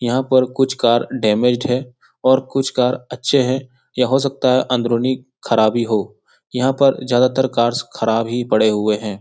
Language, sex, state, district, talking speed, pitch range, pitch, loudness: Hindi, male, Bihar, Jahanabad, 175 wpm, 115-130 Hz, 125 Hz, -17 LUFS